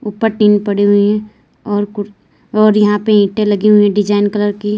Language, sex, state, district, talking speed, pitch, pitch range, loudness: Hindi, female, Uttar Pradesh, Lalitpur, 215 wpm, 210 Hz, 205-210 Hz, -13 LUFS